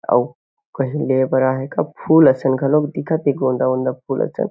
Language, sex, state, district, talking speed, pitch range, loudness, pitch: Chhattisgarhi, male, Chhattisgarh, Kabirdham, 215 wpm, 130-150 Hz, -18 LUFS, 135 Hz